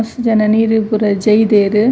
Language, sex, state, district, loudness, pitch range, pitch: Tulu, female, Karnataka, Dakshina Kannada, -13 LUFS, 210-225 Hz, 220 Hz